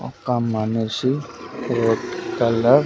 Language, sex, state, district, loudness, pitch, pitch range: Telugu, male, Andhra Pradesh, Sri Satya Sai, -22 LUFS, 120 Hz, 115-125 Hz